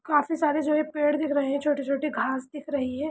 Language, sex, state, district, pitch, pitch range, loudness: Hindi, male, Bihar, Jamui, 295 Hz, 280-300 Hz, -26 LUFS